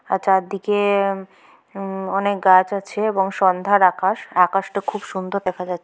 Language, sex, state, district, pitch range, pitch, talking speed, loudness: Bengali, female, West Bengal, Jhargram, 185-200 Hz, 195 Hz, 135 wpm, -19 LUFS